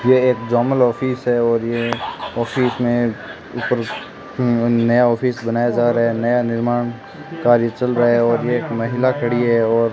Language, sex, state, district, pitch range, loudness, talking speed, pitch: Hindi, male, Rajasthan, Bikaner, 115-125 Hz, -18 LUFS, 175 wpm, 120 Hz